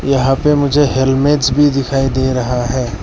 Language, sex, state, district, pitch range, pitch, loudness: Hindi, male, Arunachal Pradesh, Lower Dibang Valley, 130-140 Hz, 135 Hz, -14 LUFS